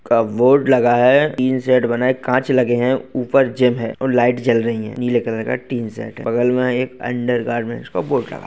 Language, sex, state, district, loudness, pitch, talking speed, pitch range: Hindi, male, Jharkhand, Jamtara, -17 LUFS, 125 Hz, 225 wpm, 120-130 Hz